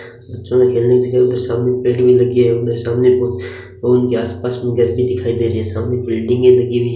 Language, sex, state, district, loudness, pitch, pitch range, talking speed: Hindi, male, Rajasthan, Bikaner, -15 LUFS, 120 Hz, 115-125 Hz, 230 wpm